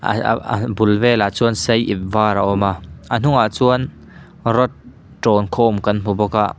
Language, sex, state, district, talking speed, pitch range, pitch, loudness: Mizo, male, Mizoram, Aizawl, 180 wpm, 100-115 Hz, 110 Hz, -17 LUFS